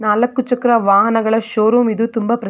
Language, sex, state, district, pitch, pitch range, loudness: Kannada, female, Karnataka, Mysore, 225 Hz, 220-240 Hz, -15 LUFS